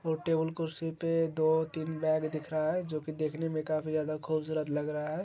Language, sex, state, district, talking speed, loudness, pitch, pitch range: Hindi, male, Bihar, Lakhisarai, 220 wpm, -32 LUFS, 155 Hz, 155-160 Hz